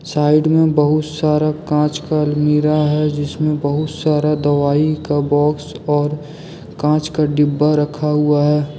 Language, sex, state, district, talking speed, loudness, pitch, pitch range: Hindi, male, Jharkhand, Deoghar, 145 wpm, -16 LUFS, 150 Hz, 150-155 Hz